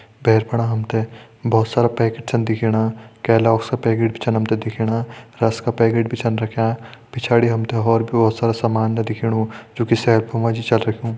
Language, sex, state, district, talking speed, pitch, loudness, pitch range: Hindi, male, Uttarakhand, Tehri Garhwal, 195 wpm, 115 Hz, -19 LUFS, 110-115 Hz